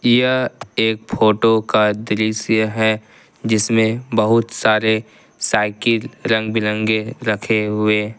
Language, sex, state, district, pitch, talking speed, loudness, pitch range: Hindi, male, Jharkhand, Ranchi, 110 Hz, 105 wpm, -18 LUFS, 110-115 Hz